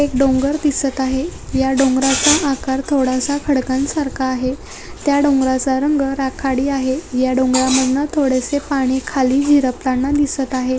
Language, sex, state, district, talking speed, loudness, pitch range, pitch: Marathi, female, Maharashtra, Sindhudurg, 130 wpm, -17 LUFS, 260-285 Hz, 270 Hz